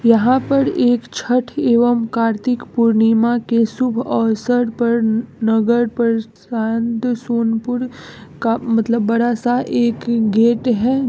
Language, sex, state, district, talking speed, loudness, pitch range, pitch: Hindi, female, Bihar, East Champaran, 115 wpm, -17 LUFS, 225-245 Hz, 235 Hz